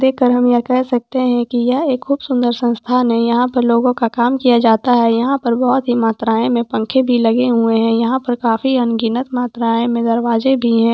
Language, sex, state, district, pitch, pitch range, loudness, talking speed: Hindi, female, Jharkhand, Sahebganj, 240 Hz, 230-250 Hz, -15 LUFS, 225 wpm